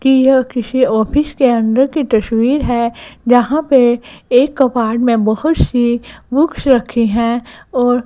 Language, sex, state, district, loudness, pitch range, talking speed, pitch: Hindi, female, Gujarat, Gandhinagar, -14 LUFS, 235-265 Hz, 150 wpm, 245 Hz